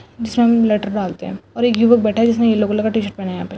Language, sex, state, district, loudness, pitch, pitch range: Chhattisgarhi, female, Chhattisgarh, Rajnandgaon, -16 LUFS, 220 Hz, 205-230 Hz